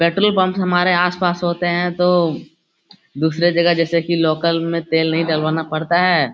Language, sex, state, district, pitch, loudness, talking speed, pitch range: Hindi, male, Bihar, Lakhisarai, 170 Hz, -17 LUFS, 170 wpm, 160-180 Hz